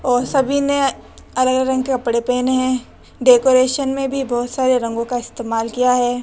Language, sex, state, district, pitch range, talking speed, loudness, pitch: Hindi, female, Rajasthan, Jaipur, 245-265 Hz, 185 wpm, -17 LUFS, 255 Hz